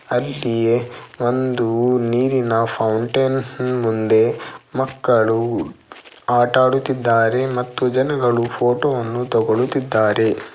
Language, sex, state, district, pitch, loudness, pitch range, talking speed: Kannada, male, Karnataka, Dakshina Kannada, 120 Hz, -18 LUFS, 115-130 Hz, 65 wpm